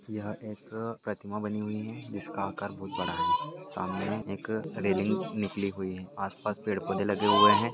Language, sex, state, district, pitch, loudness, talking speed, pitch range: Hindi, male, Maharashtra, Pune, 105 Hz, -31 LUFS, 195 wpm, 100-110 Hz